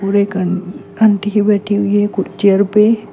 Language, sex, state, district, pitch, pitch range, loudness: Hindi, female, Uttar Pradesh, Shamli, 205 Hz, 195-210 Hz, -14 LUFS